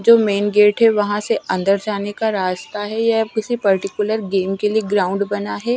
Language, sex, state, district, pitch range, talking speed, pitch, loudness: Hindi, female, Punjab, Fazilka, 200-220 Hz, 210 wpm, 205 Hz, -18 LUFS